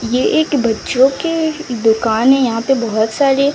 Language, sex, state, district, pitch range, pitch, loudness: Hindi, female, Odisha, Sambalpur, 230-280 Hz, 260 Hz, -15 LUFS